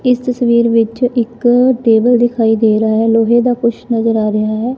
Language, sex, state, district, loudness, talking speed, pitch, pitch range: Punjabi, female, Punjab, Fazilka, -12 LUFS, 190 wpm, 235 Hz, 225-245 Hz